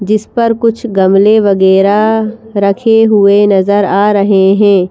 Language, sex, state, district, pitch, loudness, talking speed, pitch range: Hindi, female, Madhya Pradesh, Bhopal, 205 Hz, -9 LUFS, 135 wpm, 195-220 Hz